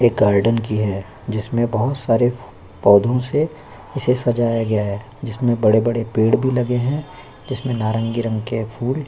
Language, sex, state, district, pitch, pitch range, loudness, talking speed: Hindi, male, Chhattisgarh, Korba, 115 Hz, 110-125 Hz, -19 LUFS, 160 wpm